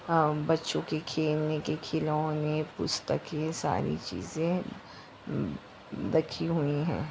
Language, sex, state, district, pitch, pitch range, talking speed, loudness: Hindi, female, Maharashtra, Chandrapur, 155 Hz, 150-160 Hz, 100 wpm, -31 LUFS